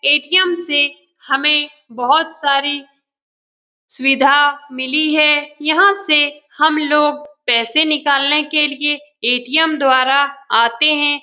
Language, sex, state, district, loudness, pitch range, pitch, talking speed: Hindi, female, Bihar, Lakhisarai, -14 LUFS, 275-305 Hz, 295 Hz, 105 wpm